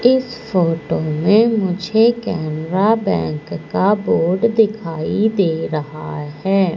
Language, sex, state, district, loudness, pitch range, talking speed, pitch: Hindi, female, Madhya Pradesh, Katni, -18 LUFS, 160-220 Hz, 105 wpm, 190 Hz